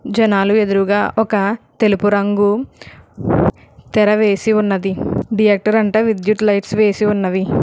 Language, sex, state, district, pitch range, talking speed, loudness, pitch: Telugu, female, Telangana, Hyderabad, 200-215 Hz, 100 wpm, -15 LUFS, 210 Hz